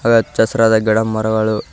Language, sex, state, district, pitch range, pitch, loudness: Kannada, male, Karnataka, Koppal, 110-115 Hz, 110 Hz, -15 LUFS